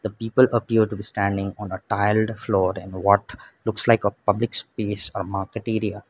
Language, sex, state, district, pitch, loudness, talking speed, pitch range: English, male, Sikkim, Gangtok, 105 Hz, -23 LUFS, 185 wpm, 100-110 Hz